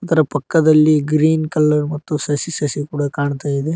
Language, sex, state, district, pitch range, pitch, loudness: Kannada, male, Karnataka, Koppal, 145-155 Hz, 150 Hz, -17 LUFS